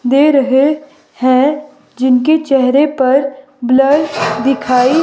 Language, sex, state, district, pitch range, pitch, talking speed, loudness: Hindi, female, Himachal Pradesh, Shimla, 255-290 Hz, 275 Hz, 95 wpm, -12 LUFS